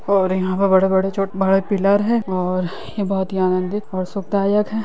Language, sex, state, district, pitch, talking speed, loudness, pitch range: Hindi, female, Bihar, Lakhisarai, 195 Hz, 200 wpm, -19 LUFS, 185-200 Hz